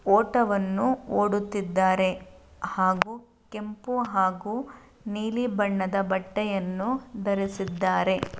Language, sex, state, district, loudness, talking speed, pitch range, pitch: Kannada, female, Karnataka, Dharwad, -26 LUFS, 65 wpm, 190-225 Hz, 205 Hz